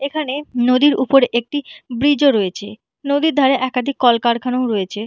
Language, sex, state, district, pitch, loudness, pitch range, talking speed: Bengali, female, West Bengal, Purulia, 255 Hz, -16 LUFS, 235-280 Hz, 140 wpm